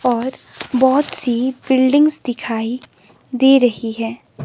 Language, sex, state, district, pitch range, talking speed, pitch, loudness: Hindi, female, Himachal Pradesh, Shimla, 235-265 Hz, 110 wpm, 255 Hz, -17 LUFS